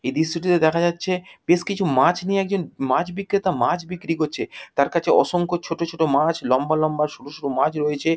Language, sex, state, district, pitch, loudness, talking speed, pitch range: Bengali, female, West Bengal, Jhargram, 165 Hz, -22 LUFS, 190 wpm, 150-180 Hz